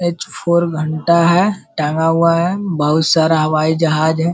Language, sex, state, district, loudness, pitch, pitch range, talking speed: Hindi, male, Bihar, Araria, -15 LUFS, 165 Hz, 155-170 Hz, 165 wpm